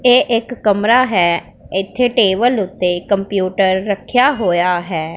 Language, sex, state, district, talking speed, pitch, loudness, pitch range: Punjabi, female, Punjab, Pathankot, 125 wpm, 195 Hz, -15 LUFS, 180-240 Hz